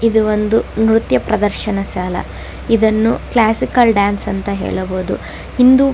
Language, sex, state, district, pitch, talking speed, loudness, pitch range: Kannada, female, Karnataka, Dakshina Kannada, 215 Hz, 110 wpm, -15 LUFS, 200-225 Hz